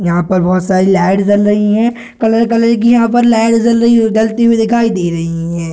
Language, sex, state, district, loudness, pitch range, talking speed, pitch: Hindi, male, Bihar, Gaya, -11 LUFS, 185-230 Hz, 240 wpm, 220 Hz